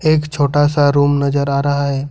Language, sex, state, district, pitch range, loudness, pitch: Hindi, male, Jharkhand, Ranchi, 140-145 Hz, -15 LUFS, 145 Hz